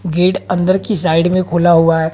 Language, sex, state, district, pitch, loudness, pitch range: Hindi, female, Haryana, Jhajjar, 175 Hz, -13 LUFS, 165-185 Hz